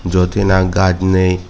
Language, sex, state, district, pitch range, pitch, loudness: Chakma, male, Tripura, Dhalai, 90-95 Hz, 95 Hz, -14 LUFS